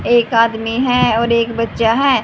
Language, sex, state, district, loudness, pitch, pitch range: Hindi, female, Haryana, Charkhi Dadri, -15 LUFS, 230 Hz, 230-240 Hz